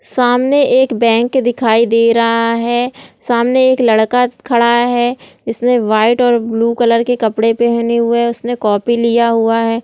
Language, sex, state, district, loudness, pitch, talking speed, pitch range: Hindi, female, Bihar, Jahanabad, -13 LUFS, 235 Hz, 175 wpm, 230-245 Hz